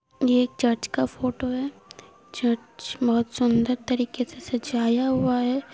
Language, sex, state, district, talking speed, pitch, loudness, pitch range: Hindi, female, Uttar Pradesh, Hamirpur, 155 wpm, 250 Hz, -25 LUFS, 235-255 Hz